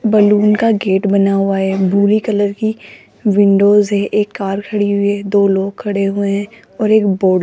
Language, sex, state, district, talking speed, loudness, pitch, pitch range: Hindi, female, Rajasthan, Jaipur, 200 wpm, -14 LUFS, 200 Hz, 195-210 Hz